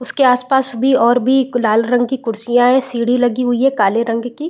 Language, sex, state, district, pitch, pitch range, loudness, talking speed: Hindi, female, Chhattisgarh, Raigarh, 245 Hz, 235-260 Hz, -15 LUFS, 255 wpm